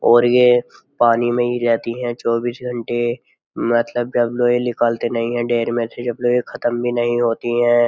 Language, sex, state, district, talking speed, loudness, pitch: Hindi, male, Uttar Pradesh, Jyotiba Phule Nagar, 190 wpm, -18 LUFS, 120 Hz